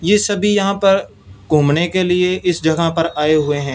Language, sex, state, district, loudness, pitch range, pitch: Hindi, male, Punjab, Fazilka, -15 LUFS, 150-195 Hz, 170 Hz